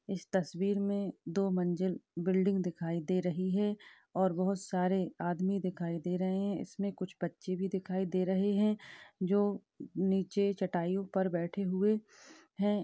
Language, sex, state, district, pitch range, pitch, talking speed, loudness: Hindi, female, Uttar Pradesh, Hamirpur, 185-200 Hz, 190 Hz, 155 wpm, -34 LUFS